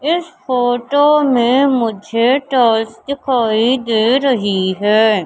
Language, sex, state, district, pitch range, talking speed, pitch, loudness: Hindi, male, Madhya Pradesh, Katni, 220-275 Hz, 105 wpm, 245 Hz, -14 LUFS